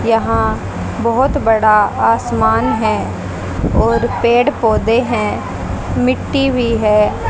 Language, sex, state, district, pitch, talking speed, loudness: Hindi, female, Haryana, Jhajjar, 215 Hz, 100 wpm, -15 LUFS